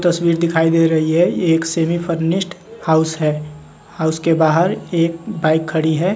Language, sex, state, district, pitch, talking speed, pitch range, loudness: Hindi, male, Bihar, West Champaran, 165 Hz, 165 wpm, 160-170 Hz, -17 LUFS